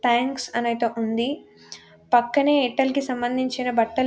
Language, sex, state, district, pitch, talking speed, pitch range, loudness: Telugu, female, Telangana, Nalgonda, 250 Hz, 120 wpm, 235-265 Hz, -23 LUFS